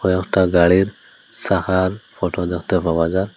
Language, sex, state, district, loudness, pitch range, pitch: Bengali, male, Assam, Hailakandi, -18 LUFS, 90-95 Hz, 90 Hz